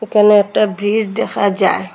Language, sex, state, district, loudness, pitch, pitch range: Bengali, female, Assam, Hailakandi, -14 LUFS, 205 Hz, 200-215 Hz